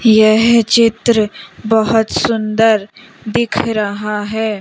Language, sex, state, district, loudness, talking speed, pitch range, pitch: Hindi, female, Madhya Pradesh, Umaria, -14 LUFS, 90 wpm, 215-230 Hz, 220 Hz